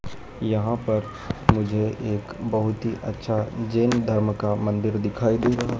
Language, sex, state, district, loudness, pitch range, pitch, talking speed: Hindi, male, Madhya Pradesh, Dhar, -24 LUFS, 105-115 Hz, 110 Hz, 155 wpm